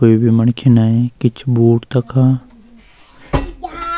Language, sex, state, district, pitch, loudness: Garhwali, male, Uttarakhand, Uttarkashi, 125 Hz, -14 LUFS